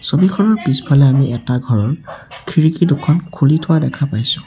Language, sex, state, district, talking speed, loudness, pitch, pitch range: Assamese, male, Assam, Sonitpur, 145 wpm, -14 LUFS, 150 Hz, 135-160 Hz